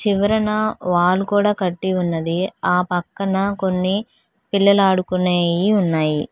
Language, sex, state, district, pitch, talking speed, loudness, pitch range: Telugu, female, Telangana, Hyderabad, 190 Hz, 105 wpm, -19 LUFS, 180-200 Hz